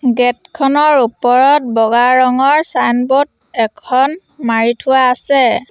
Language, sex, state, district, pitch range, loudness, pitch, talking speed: Assamese, female, Assam, Sonitpur, 240-280 Hz, -12 LUFS, 255 Hz, 105 wpm